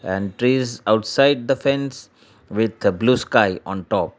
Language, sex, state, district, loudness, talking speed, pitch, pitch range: English, male, Gujarat, Valsad, -20 LUFS, 160 wpm, 115 Hz, 105-135 Hz